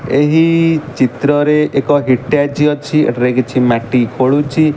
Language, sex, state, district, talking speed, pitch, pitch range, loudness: Odia, male, Odisha, Malkangiri, 125 wpm, 145 Hz, 130-150 Hz, -13 LUFS